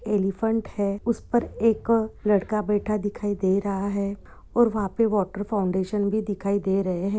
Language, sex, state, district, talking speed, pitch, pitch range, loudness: Hindi, female, Maharashtra, Nagpur, 175 wpm, 205 Hz, 200-215 Hz, -25 LUFS